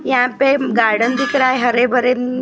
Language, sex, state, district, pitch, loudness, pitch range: Hindi, female, Maharashtra, Gondia, 250 Hz, -15 LUFS, 245-260 Hz